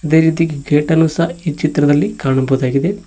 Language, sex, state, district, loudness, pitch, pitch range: Kannada, male, Karnataka, Koppal, -15 LUFS, 155 Hz, 145-165 Hz